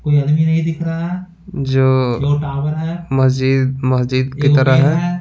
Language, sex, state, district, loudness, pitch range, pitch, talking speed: Hindi, male, Bihar, Patna, -16 LUFS, 130-165 Hz, 145 Hz, 70 wpm